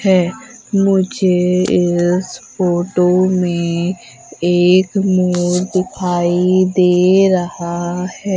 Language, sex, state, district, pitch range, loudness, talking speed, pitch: Hindi, female, Madhya Pradesh, Umaria, 175-185 Hz, -15 LUFS, 80 wpm, 180 Hz